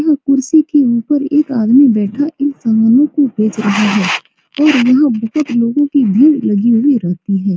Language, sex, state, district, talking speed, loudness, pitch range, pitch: Hindi, female, Bihar, Supaul, 180 wpm, -12 LUFS, 220-290 Hz, 260 Hz